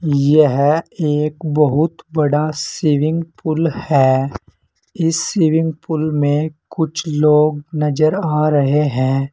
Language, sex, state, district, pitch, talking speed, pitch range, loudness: Hindi, male, Uttar Pradesh, Saharanpur, 150 Hz, 110 wpm, 145-160 Hz, -16 LUFS